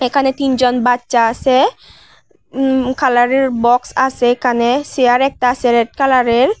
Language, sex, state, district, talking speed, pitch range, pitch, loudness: Bengali, female, Tripura, West Tripura, 120 wpm, 245-265 Hz, 255 Hz, -14 LUFS